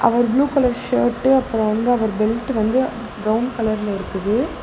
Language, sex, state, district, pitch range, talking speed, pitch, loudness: Tamil, female, Tamil Nadu, Nilgiris, 215-250 Hz, 155 wpm, 225 Hz, -19 LUFS